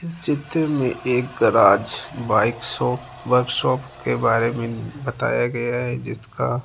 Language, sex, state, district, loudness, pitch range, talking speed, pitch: Hindi, male, Rajasthan, Jaipur, -21 LUFS, 120-135 Hz, 155 wpm, 125 Hz